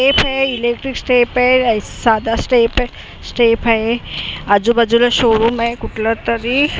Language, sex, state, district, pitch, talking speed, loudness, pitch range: Marathi, female, Maharashtra, Mumbai Suburban, 235 Hz, 125 wpm, -15 LUFS, 230-250 Hz